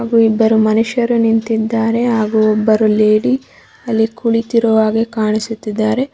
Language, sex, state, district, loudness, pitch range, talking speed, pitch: Kannada, female, Karnataka, Bangalore, -14 LUFS, 220-230 Hz, 105 wpm, 225 Hz